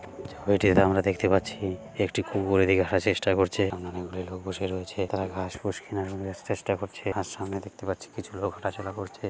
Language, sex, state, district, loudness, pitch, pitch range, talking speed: Bengali, male, West Bengal, Malda, -28 LUFS, 95 Hz, 95-100 Hz, 200 wpm